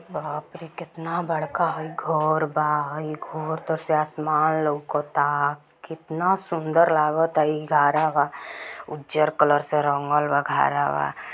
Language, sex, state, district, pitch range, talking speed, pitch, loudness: Bhojpuri, female, Bihar, Gopalganj, 150-160 Hz, 110 wpm, 155 Hz, -23 LUFS